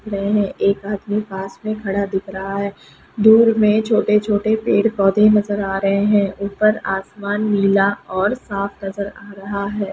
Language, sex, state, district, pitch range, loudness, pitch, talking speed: Hindi, female, Chhattisgarh, Raigarh, 195-210 Hz, -18 LUFS, 200 Hz, 175 wpm